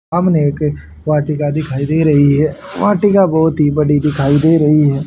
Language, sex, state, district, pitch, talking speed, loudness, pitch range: Hindi, male, Haryana, Charkhi Dadri, 150 Hz, 175 wpm, -13 LUFS, 145-160 Hz